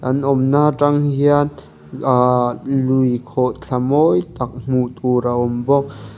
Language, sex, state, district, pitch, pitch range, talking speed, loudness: Mizo, male, Mizoram, Aizawl, 130 Hz, 125-140 Hz, 135 wpm, -17 LUFS